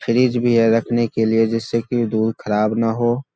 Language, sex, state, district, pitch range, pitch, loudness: Hindi, male, Bihar, Saharsa, 115-120 Hz, 115 Hz, -18 LUFS